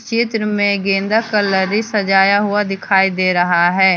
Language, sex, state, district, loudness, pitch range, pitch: Hindi, female, Jharkhand, Deoghar, -15 LUFS, 190-210 Hz, 200 Hz